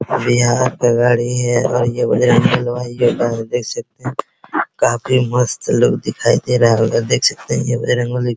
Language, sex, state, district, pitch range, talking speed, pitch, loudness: Hindi, male, Bihar, Araria, 120-125 Hz, 170 wpm, 120 Hz, -16 LUFS